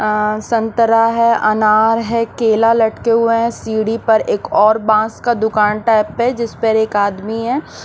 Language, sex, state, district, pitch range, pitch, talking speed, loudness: Hindi, female, Haryana, Rohtak, 215-230 Hz, 225 Hz, 170 wpm, -15 LUFS